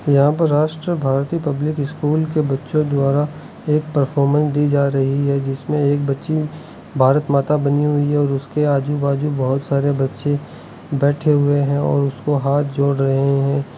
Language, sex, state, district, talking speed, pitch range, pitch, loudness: Hindi, male, Arunachal Pradesh, Lower Dibang Valley, 170 wpm, 140-150 Hz, 145 Hz, -18 LUFS